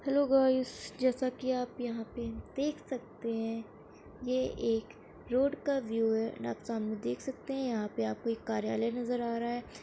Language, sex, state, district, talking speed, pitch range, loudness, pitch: Hindi, female, Uttar Pradesh, Etah, 195 wpm, 225-260 Hz, -34 LUFS, 240 Hz